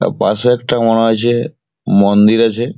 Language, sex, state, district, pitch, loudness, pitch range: Bengali, male, West Bengal, Purulia, 120 Hz, -13 LUFS, 115-125 Hz